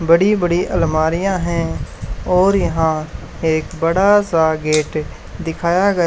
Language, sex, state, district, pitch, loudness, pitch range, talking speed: Hindi, male, Haryana, Charkhi Dadri, 170 Hz, -17 LUFS, 160-185 Hz, 120 wpm